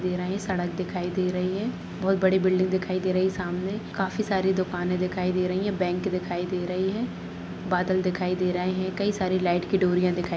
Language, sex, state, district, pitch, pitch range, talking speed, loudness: Hindi, female, Bihar, Jahanabad, 185 Hz, 180-190 Hz, 235 wpm, -26 LUFS